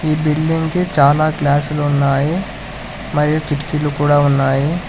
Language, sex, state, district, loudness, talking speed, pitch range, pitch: Telugu, male, Telangana, Hyderabad, -16 LUFS, 125 wpm, 145-155 Hz, 150 Hz